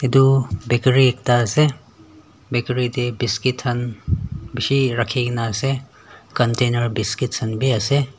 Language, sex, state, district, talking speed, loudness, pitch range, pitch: Nagamese, male, Nagaland, Dimapur, 115 wpm, -20 LUFS, 115-130 Hz, 120 Hz